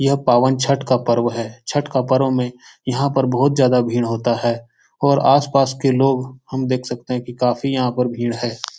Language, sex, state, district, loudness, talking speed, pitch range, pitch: Hindi, male, Uttar Pradesh, Etah, -18 LUFS, 210 wpm, 120-135 Hz, 125 Hz